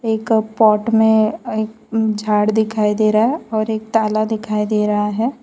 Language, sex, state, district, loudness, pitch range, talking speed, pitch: Hindi, female, Gujarat, Valsad, -17 LUFS, 215-225 Hz, 175 wpm, 220 Hz